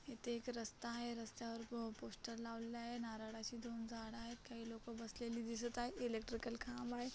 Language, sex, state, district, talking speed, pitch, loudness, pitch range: Marathi, female, Maharashtra, Solapur, 170 wpm, 235 Hz, -48 LUFS, 230-240 Hz